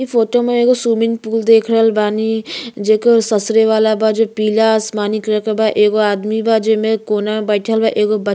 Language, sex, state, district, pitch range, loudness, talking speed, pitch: Bhojpuri, female, Uttar Pradesh, Ghazipur, 215-225 Hz, -14 LUFS, 215 wpm, 220 Hz